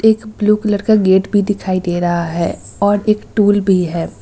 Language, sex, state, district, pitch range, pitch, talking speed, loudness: Hindi, female, Uttar Pradesh, Lucknow, 180-210 Hz, 205 Hz, 215 wpm, -15 LUFS